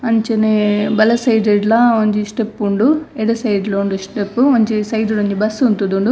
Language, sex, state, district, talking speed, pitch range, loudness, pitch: Tulu, female, Karnataka, Dakshina Kannada, 145 wpm, 205-230 Hz, -15 LUFS, 215 Hz